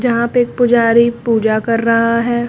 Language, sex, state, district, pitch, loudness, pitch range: Hindi, female, Uttar Pradesh, Lucknow, 235 Hz, -13 LUFS, 230-240 Hz